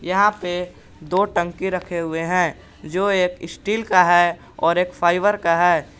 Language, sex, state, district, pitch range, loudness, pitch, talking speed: Hindi, male, Jharkhand, Garhwa, 170-185 Hz, -20 LUFS, 180 Hz, 170 wpm